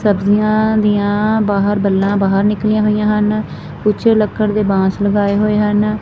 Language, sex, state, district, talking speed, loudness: Punjabi, female, Punjab, Fazilka, 150 wpm, -14 LUFS